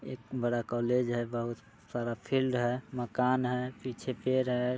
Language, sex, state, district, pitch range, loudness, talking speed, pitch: Hindi, male, Bihar, Muzaffarpur, 120-125 Hz, -32 LUFS, 165 wpm, 125 Hz